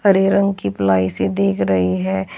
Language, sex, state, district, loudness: Hindi, female, Haryana, Charkhi Dadri, -17 LUFS